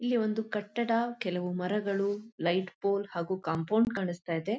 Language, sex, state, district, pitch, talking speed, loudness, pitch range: Kannada, female, Karnataka, Mysore, 200 Hz, 130 wpm, -31 LUFS, 180-220 Hz